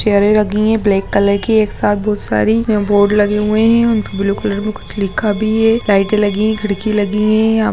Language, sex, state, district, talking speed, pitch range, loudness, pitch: Hindi, female, Bihar, Muzaffarpur, 240 wpm, 205-220 Hz, -14 LUFS, 210 Hz